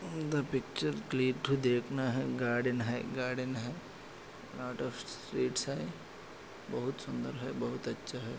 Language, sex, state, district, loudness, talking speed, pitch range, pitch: Hindi, male, Maharashtra, Aurangabad, -35 LUFS, 135 wpm, 120-130 Hz, 125 Hz